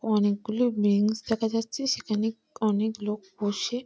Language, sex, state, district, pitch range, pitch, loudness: Bengali, female, West Bengal, Malda, 210-225 Hz, 220 Hz, -27 LUFS